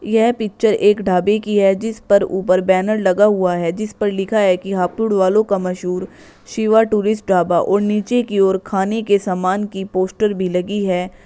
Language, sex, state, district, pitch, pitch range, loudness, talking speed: Hindi, female, Uttar Pradesh, Shamli, 200 Hz, 185-215 Hz, -17 LUFS, 180 wpm